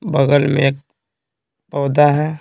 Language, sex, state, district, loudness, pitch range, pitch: Hindi, male, Bihar, Patna, -15 LUFS, 140-150 Hz, 145 Hz